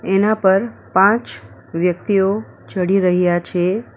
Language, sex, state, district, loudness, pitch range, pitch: Gujarati, female, Gujarat, Valsad, -17 LUFS, 175-200 Hz, 190 Hz